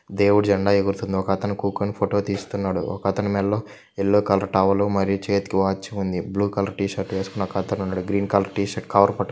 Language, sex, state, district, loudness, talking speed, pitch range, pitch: Telugu, male, Andhra Pradesh, Krishna, -22 LUFS, 185 wpm, 95-100 Hz, 100 Hz